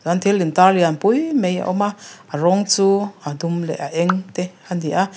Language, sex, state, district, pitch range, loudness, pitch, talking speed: Mizo, female, Mizoram, Aizawl, 170-200 Hz, -18 LUFS, 185 Hz, 230 wpm